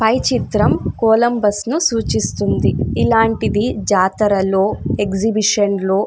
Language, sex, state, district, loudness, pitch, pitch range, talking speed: Telugu, female, Andhra Pradesh, Anantapur, -16 LUFS, 215 Hz, 200-225 Hz, 90 wpm